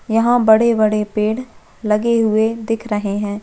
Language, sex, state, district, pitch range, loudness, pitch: Hindi, female, Chhattisgarh, Bastar, 210-230 Hz, -16 LUFS, 220 Hz